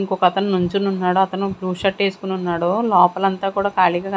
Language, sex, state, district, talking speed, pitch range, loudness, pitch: Telugu, female, Andhra Pradesh, Sri Satya Sai, 185 wpm, 185-195 Hz, -19 LUFS, 190 Hz